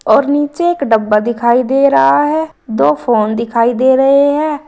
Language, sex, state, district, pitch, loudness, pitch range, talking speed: Hindi, female, Uttar Pradesh, Saharanpur, 255 Hz, -12 LUFS, 225-290 Hz, 180 wpm